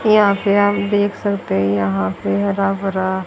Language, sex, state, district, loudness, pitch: Hindi, female, Haryana, Charkhi Dadri, -17 LUFS, 195 Hz